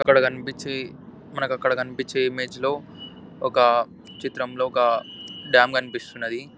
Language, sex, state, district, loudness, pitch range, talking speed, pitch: Telugu, male, Andhra Pradesh, Anantapur, -23 LUFS, 125-135 Hz, 120 wpm, 130 Hz